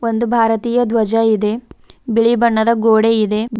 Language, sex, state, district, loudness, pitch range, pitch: Kannada, female, Karnataka, Bidar, -15 LUFS, 220-235 Hz, 225 Hz